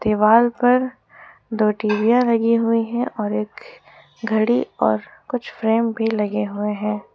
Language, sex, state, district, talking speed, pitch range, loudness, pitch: Hindi, female, Jharkhand, Ranchi, 145 wpm, 210-235 Hz, -20 LUFS, 225 Hz